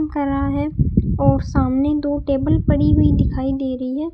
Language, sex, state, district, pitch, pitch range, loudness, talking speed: Hindi, male, Rajasthan, Bikaner, 280 Hz, 270-295 Hz, -19 LUFS, 190 wpm